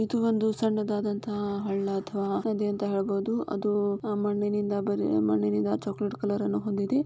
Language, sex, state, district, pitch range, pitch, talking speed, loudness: Kannada, female, Karnataka, Shimoga, 195-210 Hz, 205 Hz, 135 wpm, -28 LUFS